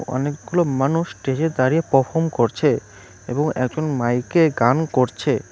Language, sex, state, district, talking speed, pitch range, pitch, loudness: Bengali, male, West Bengal, Cooch Behar, 120 wpm, 125-160 Hz, 140 Hz, -20 LUFS